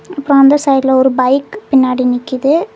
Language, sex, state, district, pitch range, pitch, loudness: Tamil, female, Tamil Nadu, Kanyakumari, 260-285 Hz, 270 Hz, -12 LUFS